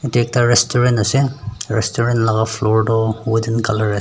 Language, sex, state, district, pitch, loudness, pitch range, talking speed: Nagamese, male, Nagaland, Dimapur, 115 Hz, -16 LUFS, 110-120 Hz, 165 wpm